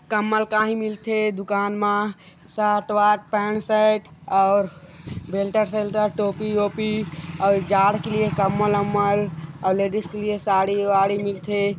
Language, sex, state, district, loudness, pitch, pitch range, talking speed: Chhattisgarhi, male, Chhattisgarh, Korba, -22 LUFS, 205 Hz, 195-215 Hz, 115 wpm